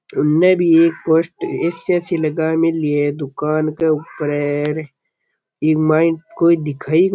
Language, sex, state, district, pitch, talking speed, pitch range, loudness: Rajasthani, male, Rajasthan, Churu, 160 Hz, 160 wpm, 150-165 Hz, -17 LUFS